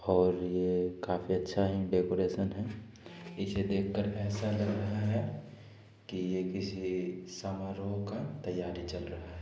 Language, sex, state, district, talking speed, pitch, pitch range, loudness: Hindi, male, Bihar, Araria, 145 wpm, 95 Hz, 90-105 Hz, -34 LUFS